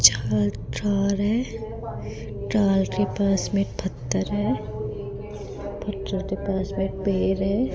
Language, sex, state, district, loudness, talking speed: Hindi, female, Rajasthan, Jaipur, -25 LUFS, 115 wpm